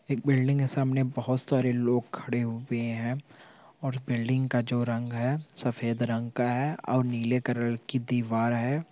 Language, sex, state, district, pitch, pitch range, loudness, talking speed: Hindi, male, Andhra Pradesh, Anantapur, 125 Hz, 120-135 Hz, -29 LUFS, 175 wpm